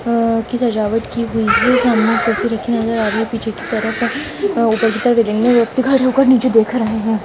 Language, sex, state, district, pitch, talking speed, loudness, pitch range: Hindi, female, Uttar Pradesh, Jalaun, 230 Hz, 40 wpm, -15 LUFS, 225-245 Hz